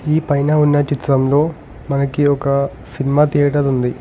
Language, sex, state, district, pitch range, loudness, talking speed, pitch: Telugu, male, Telangana, Hyderabad, 135-145 Hz, -16 LUFS, 135 wpm, 145 Hz